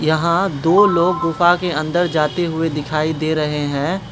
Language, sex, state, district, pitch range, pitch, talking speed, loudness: Hindi, male, Manipur, Imphal West, 155-175 Hz, 165 Hz, 175 wpm, -17 LUFS